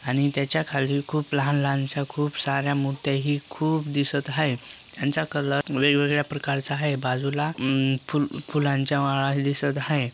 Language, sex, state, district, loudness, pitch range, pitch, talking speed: Marathi, male, Maharashtra, Dhule, -25 LUFS, 140-145 Hz, 140 Hz, 140 wpm